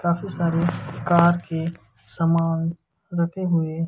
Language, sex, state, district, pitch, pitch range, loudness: Hindi, male, Madhya Pradesh, Umaria, 170 Hz, 165-175 Hz, -23 LUFS